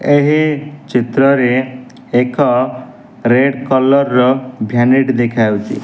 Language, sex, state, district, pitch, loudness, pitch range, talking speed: Odia, male, Odisha, Nuapada, 130 Hz, -13 LUFS, 125-135 Hz, 80 wpm